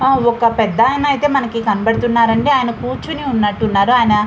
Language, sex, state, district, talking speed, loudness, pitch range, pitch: Telugu, female, Andhra Pradesh, Visakhapatnam, 170 wpm, -15 LUFS, 220-265 Hz, 230 Hz